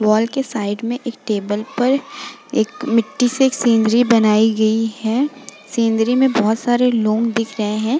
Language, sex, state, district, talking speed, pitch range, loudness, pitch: Hindi, female, Uttar Pradesh, Jalaun, 165 wpm, 220-255 Hz, -17 LUFS, 230 Hz